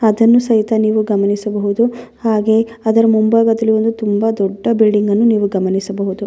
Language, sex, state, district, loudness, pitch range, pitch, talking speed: Kannada, female, Karnataka, Bellary, -14 LUFS, 205-225 Hz, 220 Hz, 125 wpm